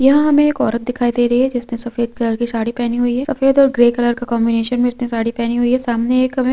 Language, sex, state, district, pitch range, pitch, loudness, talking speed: Hindi, female, Chhattisgarh, Korba, 235-255 Hz, 240 Hz, -16 LUFS, 285 wpm